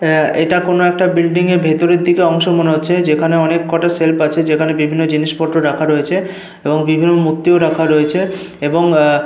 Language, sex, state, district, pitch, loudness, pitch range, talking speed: Bengali, male, Jharkhand, Sahebganj, 165 Hz, -13 LUFS, 155-175 Hz, 190 wpm